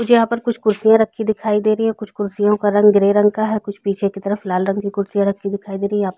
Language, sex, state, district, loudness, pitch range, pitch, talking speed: Hindi, female, Chhattisgarh, Raigarh, -17 LUFS, 200-220 Hz, 205 Hz, 330 wpm